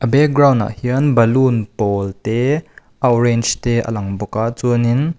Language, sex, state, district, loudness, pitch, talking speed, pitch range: Mizo, male, Mizoram, Aizawl, -16 LUFS, 120 Hz, 175 wpm, 110-130 Hz